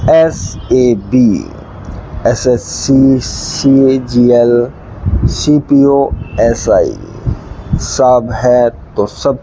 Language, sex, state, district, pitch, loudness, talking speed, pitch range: Hindi, male, Rajasthan, Bikaner, 125 Hz, -11 LUFS, 70 wpm, 115-135 Hz